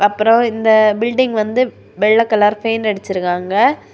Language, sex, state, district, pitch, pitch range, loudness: Tamil, female, Tamil Nadu, Kanyakumari, 215 Hz, 205-230 Hz, -15 LUFS